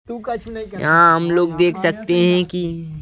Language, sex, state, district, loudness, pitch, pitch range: Hindi, male, Madhya Pradesh, Bhopal, -17 LUFS, 175 Hz, 165-200 Hz